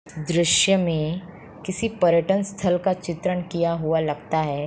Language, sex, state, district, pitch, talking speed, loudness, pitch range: Hindi, female, Uttar Pradesh, Muzaffarnagar, 170 Hz, 140 wpm, -22 LUFS, 160-185 Hz